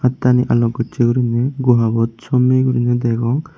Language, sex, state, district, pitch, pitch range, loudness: Chakma, male, Tripura, Unakoti, 120 Hz, 120-125 Hz, -16 LUFS